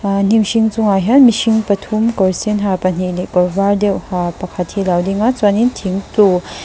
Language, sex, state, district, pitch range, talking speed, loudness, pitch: Mizo, female, Mizoram, Aizawl, 185-220 Hz, 210 wpm, -14 LUFS, 200 Hz